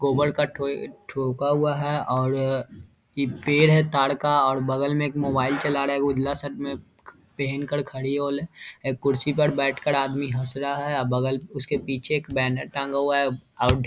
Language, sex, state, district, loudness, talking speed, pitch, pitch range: Hindi, male, Bihar, Vaishali, -24 LUFS, 170 wpm, 140 Hz, 135-145 Hz